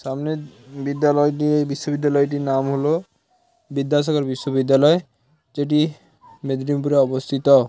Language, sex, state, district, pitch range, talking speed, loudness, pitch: Bengali, male, West Bengal, Paschim Medinipur, 135-150 Hz, 100 wpm, -20 LUFS, 145 Hz